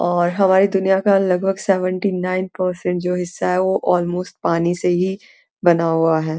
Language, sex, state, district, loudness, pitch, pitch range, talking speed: Hindi, female, Uttarakhand, Uttarkashi, -18 LUFS, 180 Hz, 175-190 Hz, 180 wpm